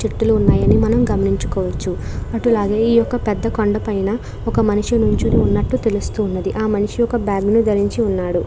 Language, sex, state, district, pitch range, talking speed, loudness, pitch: Telugu, female, Andhra Pradesh, Krishna, 185-225 Hz, 155 wpm, -18 LUFS, 210 Hz